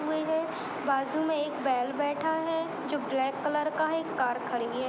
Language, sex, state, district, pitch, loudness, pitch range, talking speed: Hindi, female, Uttar Pradesh, Budaun, 295 Hz, -30 LUFS, 270-315 Hz, 185 wpm